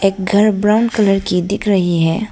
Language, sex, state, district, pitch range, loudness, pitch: Hindi, female, Arunachal Pradesh, Lower Dibang Valley, 190-210 Hz, -15 LUFS, 200 Hz